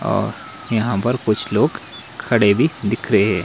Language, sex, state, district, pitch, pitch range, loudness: Hindi, male, Himachal Pradesh, Shimla, 110 Hz, 105-120 Hz, -18 LUFS